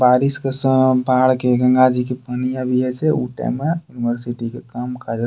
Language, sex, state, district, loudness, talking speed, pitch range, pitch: Angika, male, Bihar, Bhagalpur, -18 LUFS, 195 wpm, 125-130 Hz, 125 Hz